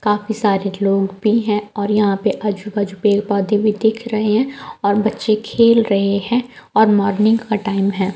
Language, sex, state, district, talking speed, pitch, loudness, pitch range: Hindi, female, Jharkhand, Jamtara, 185 wpm, 210 Hz, -17 LUFS, 200-220 Hz